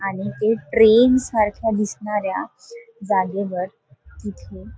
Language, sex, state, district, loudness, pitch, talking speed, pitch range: Marathi, female, Maharashtra, Solapur, -19 LUFS, 205 Hz, 90 wpm, 180-220 Hz